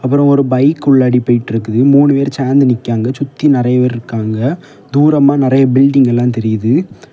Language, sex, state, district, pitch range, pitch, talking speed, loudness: Tamil, male, Tamil Nadu, Kanyakumari, 120-140 Hz, 130 Hz, 150 wpm, -12 LUFS